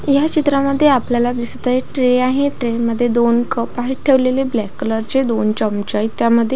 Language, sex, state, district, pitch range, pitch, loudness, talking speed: Marathi, female, Maharashtra, Pune, 230-265 Hz, 245 Hz, -16 LUFS, 165 wpm